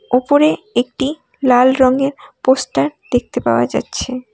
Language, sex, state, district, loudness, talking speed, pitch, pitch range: Bengali, female, West Bengal, Cooch Behar, -16 LUFS, 110 wpm, 255 Hz, 240-275 Hz